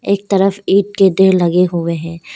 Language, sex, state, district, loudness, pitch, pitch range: Hindi, female, Arunachal Pradesh, Lower Dibang Valley, -14 LUFS, 190 Hz, 170-195 Hz